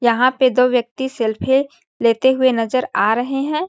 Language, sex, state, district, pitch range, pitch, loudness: Hindi, female, Chhattisgarh, Balrampur, 230-265 Hz, 255 Hz, -17 LUFS